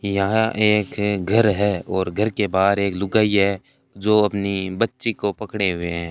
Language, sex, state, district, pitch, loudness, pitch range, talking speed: Hindi, male, Rajasthan, Bikaner, 100 Hz, -20 LUFS, 100-110 Hz, 175 wpm